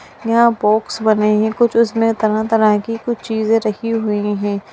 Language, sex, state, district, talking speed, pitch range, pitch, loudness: Hindi, female, Bihar, Lakhisarai, 165 wpm, 210-225 Hz, 220 Hz, -16 LUFS